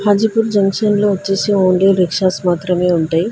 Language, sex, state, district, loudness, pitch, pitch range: Telugu, female, Telangana, Hyderabad, -14 LUFS, 195 Hz, 180-205 Hz